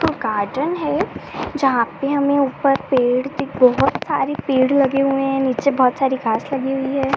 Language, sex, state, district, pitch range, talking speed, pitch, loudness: Hindi, female, Uttar Pradesh, Ghazipur, 255-280 Hz, 185 wpm, 270 Hz, -18 LUFS